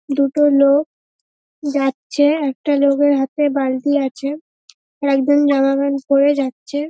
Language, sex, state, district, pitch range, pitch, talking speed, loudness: Bengali, female, West Bengal, North 24 Parganas, 275-290 Hz, 285 Hz, 120 wpm, -17 LUFS